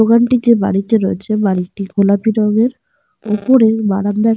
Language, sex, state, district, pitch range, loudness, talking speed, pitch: Bengali, female, Jharkhand, Sahebganj, 200-225 Hz, -14 LUFS, 125 wpm, 215 Hz